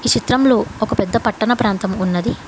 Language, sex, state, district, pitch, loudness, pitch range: Telugu, female, Telangana, Hyderabad, 220 Hz, -17 LUFS, 195-240 Hz